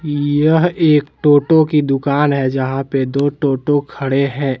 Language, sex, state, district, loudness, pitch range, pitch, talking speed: Hindi, male, Jharkhand, Deoghar, -15 LUFS, 135-150 Hz, 145 Hz, 155 wpm